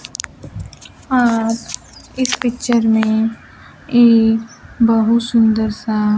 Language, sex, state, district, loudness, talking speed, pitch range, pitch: Hindi, female, Bihar, Kaimur, -15 LUFS, 80 wpm, 220-235 Hz, 225 Hz